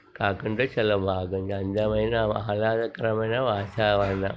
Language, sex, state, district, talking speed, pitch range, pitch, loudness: Telugu, male, Telangana, Nalgonda, 80 wpm, 100-110 Hz, 105 Hz, -26 LUFS